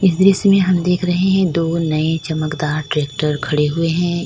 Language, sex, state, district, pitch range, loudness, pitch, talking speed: Hindi, female, Uttar Pradesh, Lalitpur, 155-180 Hz, -17 LUFS, 165 Hz, 185 wpm